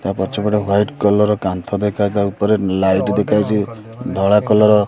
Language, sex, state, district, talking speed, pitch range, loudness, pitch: Odia, male, Odisha, Khordha, 170 wpm, 100-105 Hz, -16 LUFS, 105 Hz